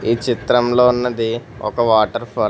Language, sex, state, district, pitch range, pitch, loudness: Telugu, male, Telangana, Hyderabad, 115-125 Hz, 115 Hz, -17 LUFS